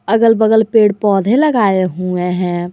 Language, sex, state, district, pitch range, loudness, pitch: Hindi, female, Jharkhand, Garhwa, 180-225 Hz, -13 LUFS, 205 Hz